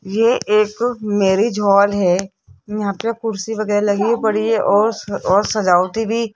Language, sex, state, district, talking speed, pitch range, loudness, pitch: Hindi, female, Rajasthan, Jaipur, 160 wpm, 200-225 Hz, -17 LUFS, 210 Hz